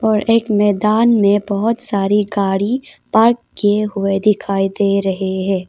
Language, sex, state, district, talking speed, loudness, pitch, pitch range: Hindi, female, Arunachal Pradesh, Papum Pare, 150 wpm, -16 LUFS, 205 Hz, 195-220 Hz